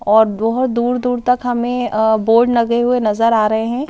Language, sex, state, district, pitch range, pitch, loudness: Hindi, female, Madhya Pradesh, Bhopal, 220-245 Hz, 235 Hz, -15 LUFS